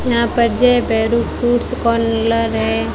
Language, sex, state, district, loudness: Hindi, female, Rajasthan, Bikaner, -16 LUFS